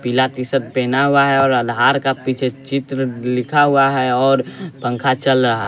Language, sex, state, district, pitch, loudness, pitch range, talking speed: Hindi, male, Bihar, West Champaran, 130 Hz, -16 LUFS, 125-135 Hz, 190 wpm